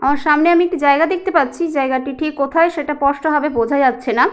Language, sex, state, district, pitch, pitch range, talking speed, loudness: Bengali, female, West Bengal, Jalpaiguri, 295 Hz, 275-330 Hz, 220 wpm, -16 LUFS